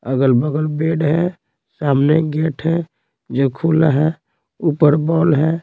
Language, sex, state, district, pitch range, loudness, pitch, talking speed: Hindi, male, Bihar, Patna, 145-160 Hz, -17 LUFS, 155 Hz, 130 wpm